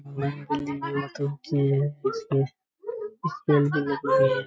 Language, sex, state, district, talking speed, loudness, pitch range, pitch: Rajasthani, male, Rajasthan, Churu, 65 wpm, -26 LUFS, 140-150 Hz, 145 Hz